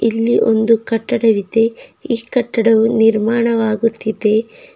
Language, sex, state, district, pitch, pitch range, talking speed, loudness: Kannada, female, Karnataka, Bidar, 225 Hz, 220-235 Hz, 75 wpm, -15 LUFS